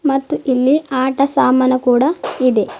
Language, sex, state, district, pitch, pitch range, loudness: Kannada, female, Karnataka, Bidar, 260 Hz, 255-280 Hz, -15 LUFS